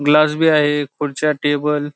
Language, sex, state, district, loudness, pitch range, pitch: Marathi, male, Maharashtra, Pune, -17 LUFS, 145-150 Hz, 150 Hz